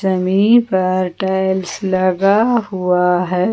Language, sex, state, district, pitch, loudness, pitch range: Hindi, female, Jharkhand, Ranchi, 190 Hz, -15 LUFS, 185-195 Hz